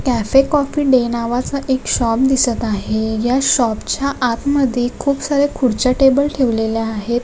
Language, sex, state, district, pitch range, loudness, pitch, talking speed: Marathi, female, Maharashtra, Nagpur, 230-275 Hz, -16 LUFS, 255 Hz, 150 wpm